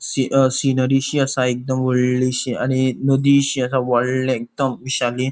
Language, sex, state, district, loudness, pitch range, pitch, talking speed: Konkani, male, Goa, North and South Goa, -19 LUFS, 125-135 Hz, 130 Hz, 135 wpm